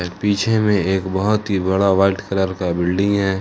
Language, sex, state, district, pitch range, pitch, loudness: Hindi, male, Jharkhand, Ranchi, 95-100 Hz, 95 Hz, -18 LUFS